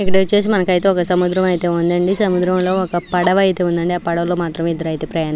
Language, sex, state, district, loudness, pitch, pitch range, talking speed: Telugu, female, Andhra Pradesh, Anantapur, -17 LUFS, 180 Hz, 170-185 Hz, 190 wpm